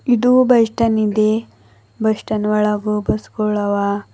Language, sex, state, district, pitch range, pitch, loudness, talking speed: Kannada, female, Karnataka, Bidar, 210-225 Hz, 215 Hz, -17 LUFS, 130 wpm